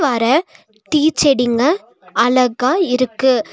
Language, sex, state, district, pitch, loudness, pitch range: Tamil, female, Tamil Nadu, Nilgiris, 255 Hz, -16 LUFS, 245-305 Hz